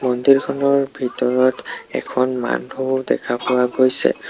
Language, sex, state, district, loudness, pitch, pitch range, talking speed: Assamese, male, Assam, Sonitpur, -19 LUFS, 130 Hz, 125-135 Hz, 100 wpm